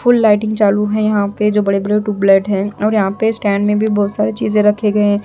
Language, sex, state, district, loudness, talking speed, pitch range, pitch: Hindi, female, Punjab, Pathankot, -14 LUFS, 250 wpm, 205-215 Hz, 210 Hz